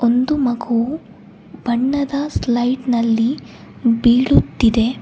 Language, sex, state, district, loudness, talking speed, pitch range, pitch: Kannada, female, Karnataka, Bangalore, -17 LUFS, 70 wpm, 235-265 Hz, 240 Hz